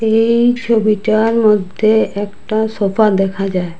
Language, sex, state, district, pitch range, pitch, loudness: Bengali, female, Assam, Hailakandi, 200-220 Hz, 215 Hz, -14 LUFS